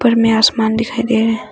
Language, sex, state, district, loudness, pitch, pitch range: Hindi, female, Arunachal Pradesh, Longding, -14 LUFS, 225 Hz, 225-235 Hz